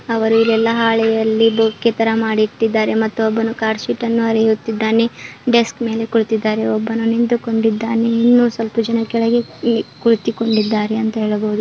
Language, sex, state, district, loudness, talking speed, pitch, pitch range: Kannada, female, Karnataka, Shimoga, -16 LUFS, 125 wpm, 225 Hz, 220-230 Hz